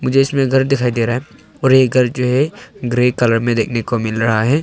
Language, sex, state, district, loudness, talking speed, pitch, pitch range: Hindi, male, Arunachal Pradesh, Longding, -16 LUFS, 260 wpm, 125 Hz, 120-135 Hz